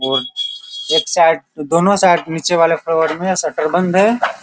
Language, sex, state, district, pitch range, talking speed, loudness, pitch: Hindi, male, Bihar, Sitamarhi, 160-185 Hz, 165 wpm, -15 LUFS, 165 Hz